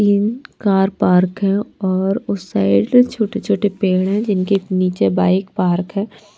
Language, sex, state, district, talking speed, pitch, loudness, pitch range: Hindi, female, Maharashtra, Washim, 140 wpm, 195 Hz, -17 LUFS, 185-205 Hz